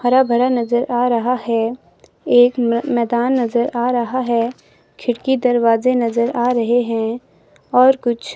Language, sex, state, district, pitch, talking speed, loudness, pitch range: Hindi, male, Himachal Pradesh, Shimla, 240 Hz, 150 wpm, -17 LUFS, 235-250 Hz